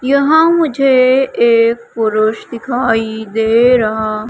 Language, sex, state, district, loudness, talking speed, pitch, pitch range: Hindi, female, Madhya Pradesh, Umaria, -12 LUFS, 100 wpm, 235 Hz, 220-260 Hz